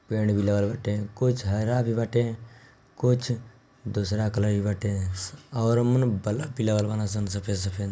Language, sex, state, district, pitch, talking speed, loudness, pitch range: Bhojpuri, male, Bihar, Gopalganj, 110 Hz, 180 wpm, -26 LUFS, 105-120 Hz